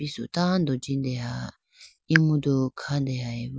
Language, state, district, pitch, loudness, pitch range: Idu Mishmi, Arunachal Pradesh, Lower Dibang Valley, 135 Hz, -26 LUFS, 125-150 Hz